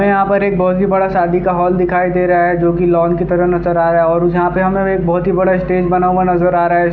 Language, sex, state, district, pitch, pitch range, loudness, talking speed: Hindi, male, Bihar, Vaishali, 180 Hz, 175-185 Hz, -13 LUFS, 330 wpm